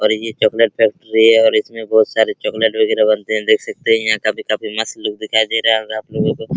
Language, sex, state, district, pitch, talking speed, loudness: Hindi, male, Bihar, Araria, 115 Hz, 245 wpm, -15 LUFS